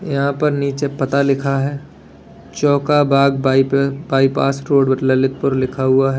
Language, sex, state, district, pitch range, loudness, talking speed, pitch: Hindi, male, Uttar Pradesh, Lalitpur, 135-140 Hz, -16 LUFS, 145 wpm, 140 Hz